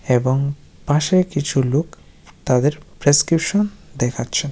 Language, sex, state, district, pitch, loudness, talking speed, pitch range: Bengali, female, West Bengal, Malda, 145 Hz, -19 LUFS, 105 wpm, 135-165 Hz